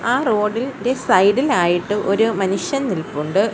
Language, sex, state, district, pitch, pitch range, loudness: Malayalam, female, Kerala, Kollam, 200 Hz, 185-225 Hz, -18 LUFS